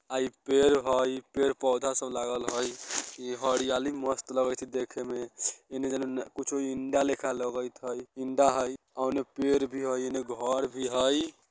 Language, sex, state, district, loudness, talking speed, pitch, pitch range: Bajjika, male, Bihar, Vaishali, -30 LUFS, 165 wpm, 130 Hz, 125-135 Hz